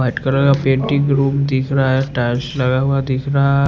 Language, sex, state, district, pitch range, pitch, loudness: Hindi, male, Punjab, Fazilka, 130-140 Hz, 135 Hz, -16 LUFS